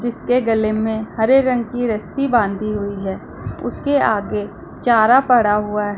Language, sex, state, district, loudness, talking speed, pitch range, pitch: Hindi, female, Punjab, Pathankot, -18 LUFS, 160 wpm, 210-245 Hz, 220 Hz